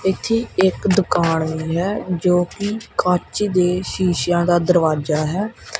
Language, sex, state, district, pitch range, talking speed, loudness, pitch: Punjabi, male, Punjab, Kapurthala, 170-195 Hz, 135 wpm, -19 LUFS, 180 Hz